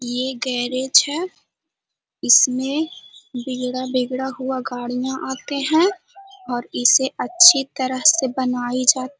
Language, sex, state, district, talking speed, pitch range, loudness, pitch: Hindi, female, Bihar, Jahanabad, 110 wpm, 255-280 Hz, -18 LUFS, 260 Hz